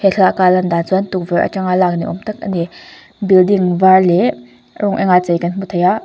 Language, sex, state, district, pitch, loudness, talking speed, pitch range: Mizo, female, Mizoram, Aizawl, 185 Hz, -14 LUFS, 250 wpm, 175-190 Hz